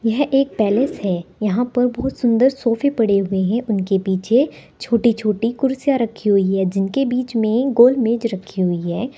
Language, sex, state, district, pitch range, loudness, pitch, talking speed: Hindi, female, Uttar Pradesh, Saharanpur, 200-250 Hz, -18 LUFS, 230 Hz, 175 wpm